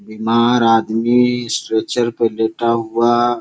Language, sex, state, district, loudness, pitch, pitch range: Hindi, male, Bihar, Gopalganj, -16 LUFS, 115 Hz, 115-120 Hz